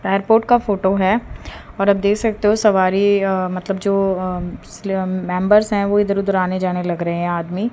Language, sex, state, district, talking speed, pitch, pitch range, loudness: Hindi, female, Haryana, Jhajjar, 180 wpm, 195 Hz, 185-205 Hz, -18 LUFS